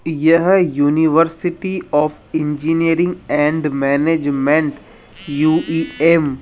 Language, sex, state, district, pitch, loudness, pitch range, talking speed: Hindi, male, Rajasthan, Jaipur, 160 Hz, -16 LUFS, 150-165 Hz, 75 wpm